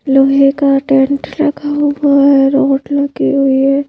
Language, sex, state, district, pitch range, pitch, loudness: Hindi, female, Madhya Pradesh, Bhopal, 275-285 Hz, 275 Hz, -12 LUFS